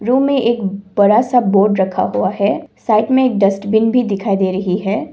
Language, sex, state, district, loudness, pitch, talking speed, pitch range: Hindi, female, Assam, Kamrup Metropolitan, -15 LUFS, 205 Hz, 200 wpm, 195-240 Hz